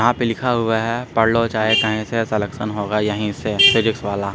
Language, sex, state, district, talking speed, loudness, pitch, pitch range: Hindi, male, Bihar, Jamui, 205 wpm, -18 LUFS, 110 Hz, 105-115 Hz